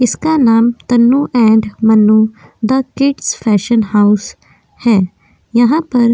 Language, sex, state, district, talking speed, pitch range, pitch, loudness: Hindi, female, Uttar Pradesh, Jyotiba Phule Nagar, 125 wpm, 220-250 Hz, 235 Hz, -12 LUFS